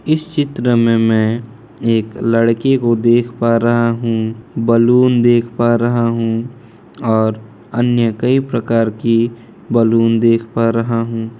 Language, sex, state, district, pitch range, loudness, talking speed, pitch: Hindi, male, Bihar, Kishanganj, 115-120 Hz, -15 LUFS, 135 wpm, 115 Hz